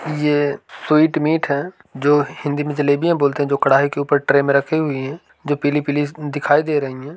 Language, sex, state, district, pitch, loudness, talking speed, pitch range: Hindi, male, Bihar, East Champaran, 145 Hz, -18 LUFS, 210 wpm, 140-150 Hz